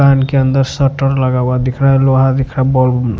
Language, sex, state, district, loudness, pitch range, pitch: Hindi, male, Maharashtra, Washim, -13 LUFS, 130-135 Hz, 135 Hz